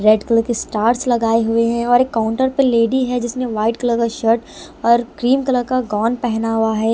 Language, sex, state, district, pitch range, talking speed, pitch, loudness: Hindi, female, Delhi, New Delhi, 225-245 Hz, 225 wpm, 235 Hz, -17 LUFS